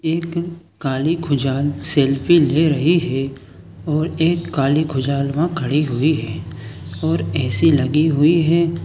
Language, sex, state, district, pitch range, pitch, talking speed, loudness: Hindi, male, Chhattisgarh, Sukma, 130-160 Hz, 145 Hz, 135 wpm, -18 LUFS